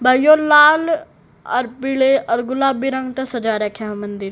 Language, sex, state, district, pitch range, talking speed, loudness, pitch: Hindi, female, Haryana, Rohtak, 230-275 Hz, 165 wpm, -16 LUFS, 260 Hz